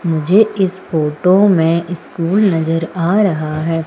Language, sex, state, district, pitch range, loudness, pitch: Hindi, female, Madhya Pradesh, Umaria, 165-190 Hz, -14 LUFS, 170 Hz